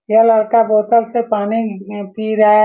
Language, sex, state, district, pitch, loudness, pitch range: Hindi, male, Bihar, Saran, 220 Hz, -14 LUFS, 210-230 Hz